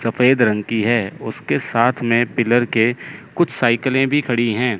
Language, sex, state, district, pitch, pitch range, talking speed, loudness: Hindi, male, Chandigarh, Chandigarh, 120 Hz, 115-125 Hz, 175 wpm, -17 LUFS